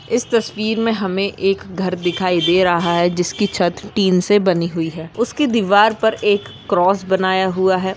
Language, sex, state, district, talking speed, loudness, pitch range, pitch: Hindi, female, Maharashtra, Aurangabad, 180 wpm, -17 LUFS, 180-205 Hz, 190 Hz